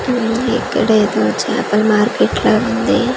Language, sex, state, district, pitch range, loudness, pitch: Telugu, female, Andhra Pradesh, Manyam, 210-240 Hz, -15 LUFS, 220 Hz